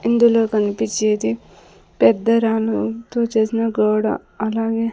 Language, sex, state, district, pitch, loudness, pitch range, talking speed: Telugu, female, Andhra Pradesh, Sri Satya Sai, 225 Hz, -18 LUFS, 215-230 Hz, 85 wpm